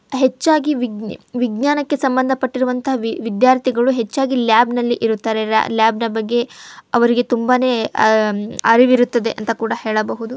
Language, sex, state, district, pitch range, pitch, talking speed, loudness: Kannada, female, Karnataka, Chamarajanagar, 225-255 Hz, 240 Hz, 120 wpm, -17 LUFS